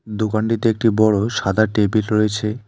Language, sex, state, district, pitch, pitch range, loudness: Bengali, male, West Bengal, Alipurduar, 110 Hz, 105-110 Hz, -18 LUFS